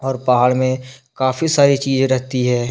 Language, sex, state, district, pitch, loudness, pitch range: Hindi, male, Jharkhand, Deoghar, 130 Hz, -17 LUFS, 125-135 Hz